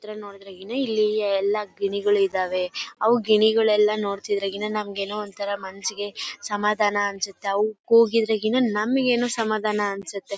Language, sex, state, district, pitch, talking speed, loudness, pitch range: Kannada, female, Karnataka, Bellary, 210 Hz, 125 wpm, -23 LUFS, 200-215 Hz